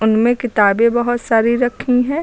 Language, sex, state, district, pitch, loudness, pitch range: Hindi, female, Uttar Pradesh, Lucknow, 240 Hz, -15 LUFS, 225-245 Hz